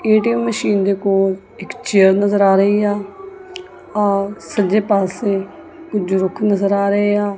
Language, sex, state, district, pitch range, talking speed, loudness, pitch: Punjabi, female, Punjab, Kapurthala, 195-215 Hz, 145 wpm, -16 LUFS, 205 Hz